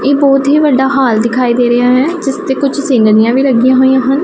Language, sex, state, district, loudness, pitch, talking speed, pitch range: Punjabi, female, Punjab, Pathankot, -10 LUFS, 265 Hz, 240 wpm, 245-275 Hz